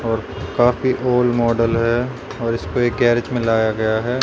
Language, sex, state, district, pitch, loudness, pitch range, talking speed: Hindi, male, Haryana, Rohtak, 120 Hz, -18 LUFS, 115-125 Hz, 185 wpm